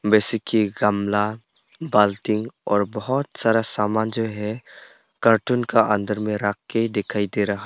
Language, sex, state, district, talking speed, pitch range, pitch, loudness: Hindi, male, Arunachal Pradesh, Papum Pare, 150 wpm, 105-115 Hz, 105 Hz, -22 LUFS